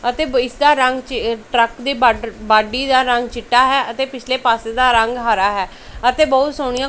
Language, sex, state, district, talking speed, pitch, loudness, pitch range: Punjabi, female, Punjab, Pathankot, 190 wpm, 250 Hz, -16 LUFS, 230-260 Hz